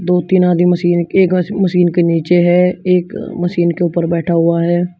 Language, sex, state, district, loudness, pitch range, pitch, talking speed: Hindi, male, Uttar Pradesh, Shamli, -13 LUFS, 170-180 Hz, 175 Hz, 205 wpm